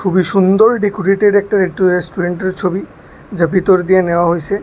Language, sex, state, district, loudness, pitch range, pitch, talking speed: Bengali, male, Tripura, West Tripura, -13 LUFS, 180-200 Hz, 185 Hz, 155 wpm